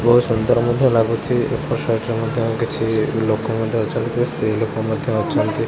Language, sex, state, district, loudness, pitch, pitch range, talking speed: Odia, male, Odisha, Khordha, -19 LUFS, 115 Hz, 110-120 Hz, 180 wpm